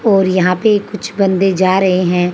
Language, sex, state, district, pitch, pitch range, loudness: Hindi, female, Haryana, Charkhi Dadri, 190 Hz, 185-200 Hz, -13 LUFS